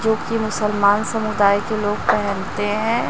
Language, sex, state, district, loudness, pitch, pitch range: Hindi, female, Chhattisgarh, Raipur, -19 LUFS, 210 Hz, 205-220 Hz